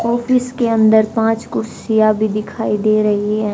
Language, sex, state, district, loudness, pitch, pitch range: Hindi, male, Haryana, Jhajjar, -16 LUFS, 220 Hz, 215-230 Hz